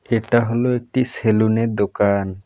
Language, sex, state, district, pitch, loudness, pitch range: Bengali, male, West Bengal, Alipurduar, 115 Hz, -19 LUFS, 100-120 Hz